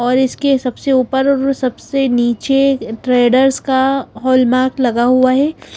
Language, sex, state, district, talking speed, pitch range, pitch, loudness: Hindi, female, Bihar, Katihar, 135 wpm, 250-270 Hz, 260 Hz, -14 LUFS